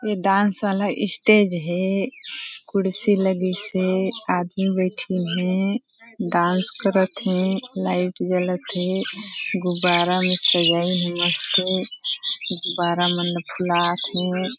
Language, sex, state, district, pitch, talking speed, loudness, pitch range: Hindi, female, Chhattisgarh, Balrampur, 185 Hz, 105 wpm, -21 LUFS, 180-195 Hz